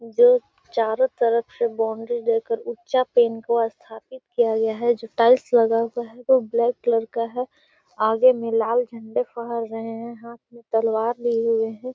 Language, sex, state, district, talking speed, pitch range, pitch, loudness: Hindi, female, Bihar, Gaya, 165 wpm, 225-245 Hz, 235 Hz, -22 LUFS